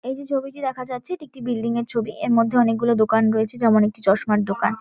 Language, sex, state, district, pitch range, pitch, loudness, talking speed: Bengali, female, West Bengal, Kolkata, 220-255 Hz, 235 Hz, -21 LUFS, 260 wpm